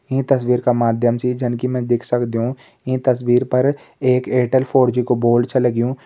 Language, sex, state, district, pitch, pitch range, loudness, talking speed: Hindi, male, Uttarakhand, Tehri Garhwal, 125 Hz, 120-130 Hz, -18 LUFS, 210 wpm